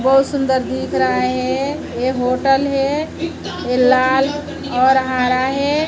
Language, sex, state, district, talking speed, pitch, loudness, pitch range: Hindi, female, Chhattisgarh, Raipur, 130 wpm, 260 Hz, -17 LUFS, 250-275 Hz